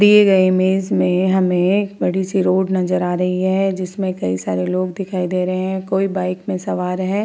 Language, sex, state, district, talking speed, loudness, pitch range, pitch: Hindi, female, Bihar, Vaishali, 215 wpm, -18 LUFS, 180-190 Hz, 185 Hz